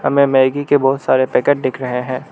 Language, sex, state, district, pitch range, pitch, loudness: Hindi, male, Arunachal Pradesh, Lower Dibang Valley, 130-140 Hz, 130 Hz, -15 LUFS